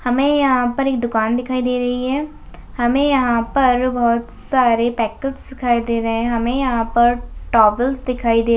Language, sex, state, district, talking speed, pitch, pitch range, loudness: Hindi, female, West Bengal, Dakshin Dinajpur, 180 wpm, 245 Hz, 235-260 Hz, -18 LUFS